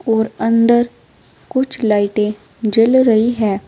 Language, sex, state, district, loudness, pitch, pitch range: Hindi, female, Uttar Pradesh, Saharanpur, -15 LUFS, 225 Hz, 215-240 Hz